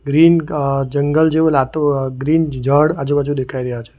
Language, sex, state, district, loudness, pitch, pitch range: Gujarati, male, Gujarat, Valsad, -16 LUFS, 145 Hz, 135-155 Hz